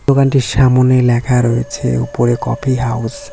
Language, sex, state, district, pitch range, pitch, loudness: Bengali, male, West Bengal, Cooch Behar, 120-130 Hz, 125 Hz, -14 LUFS